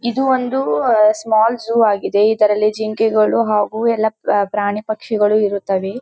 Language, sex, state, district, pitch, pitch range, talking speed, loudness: Kannada, female, Karnataka, Dharwad, 215 Hz, 210-225 Hz, 120 wpm, -16 LUFS